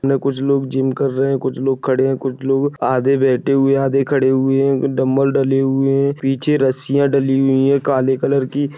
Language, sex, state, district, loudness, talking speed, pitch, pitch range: Hindi, male, Maharashtra, Dhule, -16 LUFS, 225 wpm, 135 Hz, 135-140 Hz